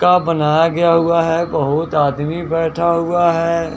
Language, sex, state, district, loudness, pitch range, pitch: Hindi, male, Bihar, West Champaran, -16 LUFS, 160-170 Hz, 165 Hz